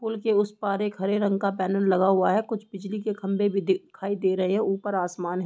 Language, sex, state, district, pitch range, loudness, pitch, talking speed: Hindi, female, Bihar, Gopalganj, 190-210 Hz, -25 LUFS, 200 Hz, 295 wpm